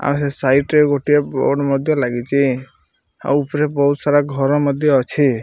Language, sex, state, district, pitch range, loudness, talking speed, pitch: Odia, male, Odisha, Malkangiri, 135-145 Hz, -17 LUFS, 155 wpm, 140 Hz